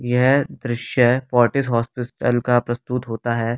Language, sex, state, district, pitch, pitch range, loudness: Hindi, male, Delhi, New Delhi, 120 Hz, 120-125 Hz, -20 LUFS